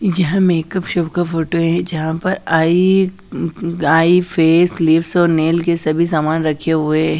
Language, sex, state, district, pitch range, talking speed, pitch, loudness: Hindi, female, Haryana, Charkhi Dadri, 160-175 Hz, 165 wpm, 170 Hz, -15 LUFS